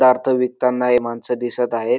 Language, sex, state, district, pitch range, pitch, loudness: Marathi, male, Maharashtra, Dhule, 120-125 Hz, 125 Hz, -19 LUFS